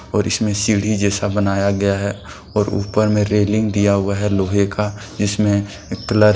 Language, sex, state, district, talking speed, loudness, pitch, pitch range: Hindi, male, Jharkhand, Deoghar, 180 wpm, -18 LUFS, 100 Hz, 100-105 Hz